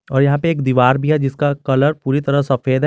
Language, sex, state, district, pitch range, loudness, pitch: Hindi, male, Jharkhand, Garhwa, 135-145 Hz, -16 LUFS, 140 Hz